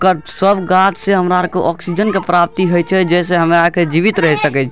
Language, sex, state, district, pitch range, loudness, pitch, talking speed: Maithili, male, Bihar, Darbhanga, 170-190 Hz, -13 LUFS, 180 Hz, 255 wpm